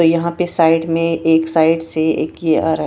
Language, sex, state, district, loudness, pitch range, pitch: Hindi, female, Punjab, Kapurthala, -16 LUFS, 160-165 Hz, 165 Hz